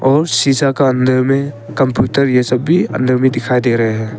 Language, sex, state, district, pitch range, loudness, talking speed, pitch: Hindi, male, Arunachal Pradesh, Papum Pare, 125-135 Hz, -14 LUFS, 215 wpm, 130 Hz